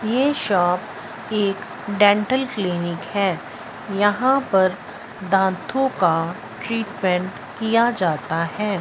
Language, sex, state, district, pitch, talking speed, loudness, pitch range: Hindi, female, Punjab, Fazilka, 200 Hz, 95 wpm, -21 LUFS, 185-225 Hz